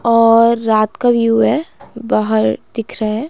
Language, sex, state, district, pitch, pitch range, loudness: Hindi, female, Himachal Pradesh, Shimla, 225 Hz, 215-235 Hz, -14 LUFS